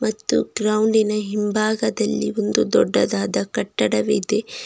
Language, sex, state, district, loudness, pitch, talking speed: Kannada, female, Karnataka, Bidar, -20 LUFS, 210 Hz, 75 wpm